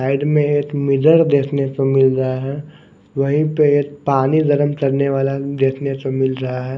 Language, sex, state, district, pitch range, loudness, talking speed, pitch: Hindi, male, Bihar, West Champaran, 135-145 Hz, -17 LUFS, 185 wpm, 140 Hz